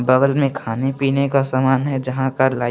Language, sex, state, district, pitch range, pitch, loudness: Hindi, male, Chandigarh, Chandigarh, 130-135 Hz, 130 Hz, -18 LUFS